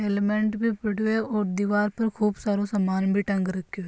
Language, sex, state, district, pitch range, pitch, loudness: Marwari, female, Rajasthan, Nagaur, 195-215 Hz, 205 Hz, -25 LUFS